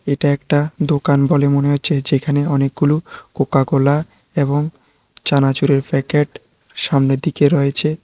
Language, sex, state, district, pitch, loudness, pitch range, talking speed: Bengali, male, Tripura, West Tripura, 145 Hz, -16 LUFS, 140-150 Hz, 120 wpm